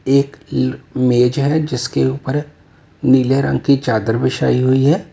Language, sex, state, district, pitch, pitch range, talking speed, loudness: Hindi, male, Uttar Pradesh, Lalitpur, 130 Hz, 125-140 Hz, 140 wpm, -16 LUFS